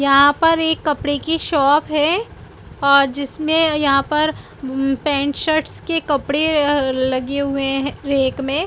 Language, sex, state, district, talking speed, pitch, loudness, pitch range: Hindi, female, Chhattisgarh, Bilaspur, 160 wpm, 285 Hz, -17 LUFS, 275-310 Hz